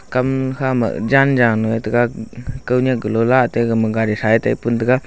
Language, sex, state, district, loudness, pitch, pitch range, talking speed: Wancho, male, Arunachal Pradesh, Longding, -17 LUFS, 120 Hz, 110-130 Hz, 215 wpm